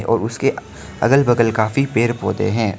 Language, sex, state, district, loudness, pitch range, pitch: Hindi, male, Arunachal Pradesh, Lower Dibang Valley, -17 LUFS, 110-125 Hz, 115 Hz